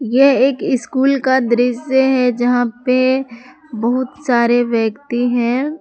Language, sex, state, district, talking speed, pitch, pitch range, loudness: Hindi, female, Jharkhand, Palamu, 125 wpm, 255 Hz, 240-265 Hz, -15 LUFS